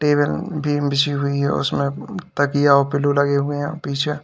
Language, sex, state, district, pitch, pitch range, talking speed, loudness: Hindi, male, Uttar Pradesh, Lalitpur, 145 Hz, 140-150 Hz, 185 wpm, -19 LUFS